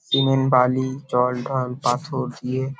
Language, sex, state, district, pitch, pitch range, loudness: Bengali, male, West Bengal, Paschim Medinipur, 130 Hz, 125-135 Hz, -21 LUFS